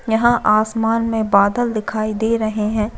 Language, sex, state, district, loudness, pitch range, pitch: Hindi, female, Chhattisgarh, Bastar, -17 LUFS, 215-230 Hz, 220 Hz